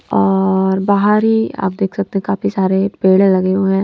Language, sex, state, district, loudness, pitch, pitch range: Hindi, female, Punjab, Kapurthala, -15 LUFS, 195 Hz, 190-200 Hz